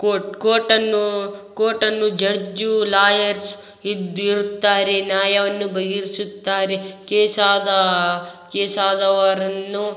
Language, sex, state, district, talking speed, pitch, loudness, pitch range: Kannada, male, Karnataka, Raichur, 90 wpm, 200 Hz, -18 LUFS, 195-205 Hz